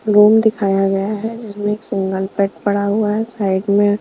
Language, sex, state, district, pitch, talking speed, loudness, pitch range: Hindi, female, Maharashtra, Mumbai Suburban, 205 Hz, 195 wpm, -17 LUFS, 195-215 Hz